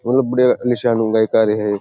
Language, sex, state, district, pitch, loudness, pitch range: Rajasthani, male, Rajasthan, Churu, 115 Hz, -16 LUFS, 110-125 Hz